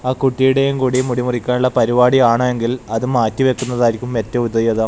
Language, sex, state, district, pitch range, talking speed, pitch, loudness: Malayalam, male, Kerala, Kasaragod, 115-130 Hz, 145 wpm, 125 Hz, -16 LUFS